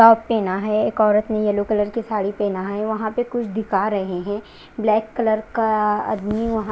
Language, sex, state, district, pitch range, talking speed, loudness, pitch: Hindi, female, Chandigarh, Chandigarh, 205-220 Hz, 205 wpm, -21 LUFS, 215 Hz